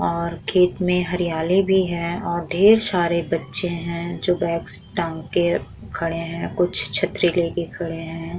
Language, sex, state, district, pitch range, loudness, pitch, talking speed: Hindi, female, Uttar Pradesh, Muzaffarnagar, 170-180 Hz, -20 LUFS, 170 Hz, 165 wpm